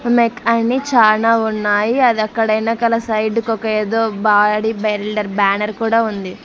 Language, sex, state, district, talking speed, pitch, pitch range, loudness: Telugu, female, Andhra Pradesh, Sri Satya Sai, 110 wpm, 220 Hz, 210-230 Hz, -16 LUFS